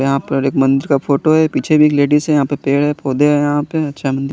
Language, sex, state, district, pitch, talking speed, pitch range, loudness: Hindi, male, Chandigarh, Chandigarh, 145 Hz, 290 wpm, 135-150 Hz, -15 LUFS